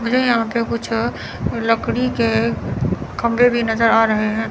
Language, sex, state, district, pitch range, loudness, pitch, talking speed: Hindi, female, Chandigarh, Chandigarh, 225-235 Hz, -18 LUFS, 230 Hz, 160 wpm